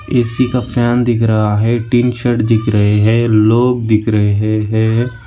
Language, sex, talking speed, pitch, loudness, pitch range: Hindi, male, 170 wpm, 115 Hz, -13 LUFS, 110-120 Hz